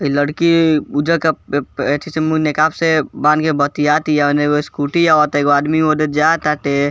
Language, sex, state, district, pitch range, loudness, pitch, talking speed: Bhojpuri, male, Bihar, East Champaran, 145-155 Hz, -15 LUFS, 150 Hz, 190 wpm